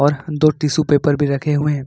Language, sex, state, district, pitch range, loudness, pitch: Hindi, male, Jharkhand, Ranchi, 145-150 Hz, -17 LUFS, 150 Hz